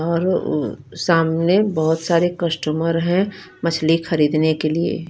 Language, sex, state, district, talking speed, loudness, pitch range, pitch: Hindi, female, Punjab, Fazilka, 130 wpm, -19 LUFS, 160-175 Hz, 165 Hz